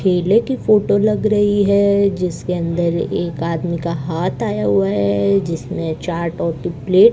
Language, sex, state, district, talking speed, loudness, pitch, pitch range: Hindi, female, Rajasthan, Bikaner, 170 wpm, -17 LUFS, 175 Hz, 165-200 Hz